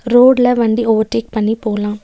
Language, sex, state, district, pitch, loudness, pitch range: Tamil, female, Tamil Nadu, Nilgiris, 225 Hz, -14 LUFS, 215-240 Hz